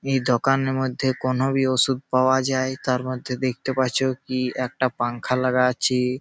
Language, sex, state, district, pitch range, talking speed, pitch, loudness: Bengali, male, West Bengal, Malda, 125-130 Hz, 165 wpm, 130 Hz, -22 LUFS